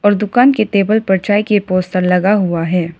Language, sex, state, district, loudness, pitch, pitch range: Hindi, female, Arunachal Pradesh, Lower Dibang Valley, -14 LUFS, 200 Hz, 185-210 Hz